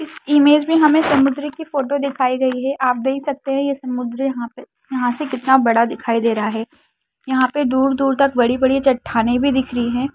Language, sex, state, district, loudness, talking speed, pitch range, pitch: Hindi, female, Bihar, Saharsa, -17 LUFS, 220 wpm, 250-280 Hz, 265 Hz